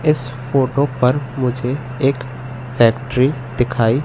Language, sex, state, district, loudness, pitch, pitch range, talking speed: Hindi, male, Madhya Pradesh, Katni, -18 LUFS, 130 Hz, 125-135 Hz, 105 wpm